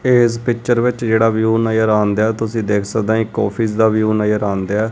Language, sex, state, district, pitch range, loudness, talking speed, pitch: Punjabi, male, Punjab, Kapurthala, 105-115 Hz, -16 LUFS, 220 wpm, 110 Hz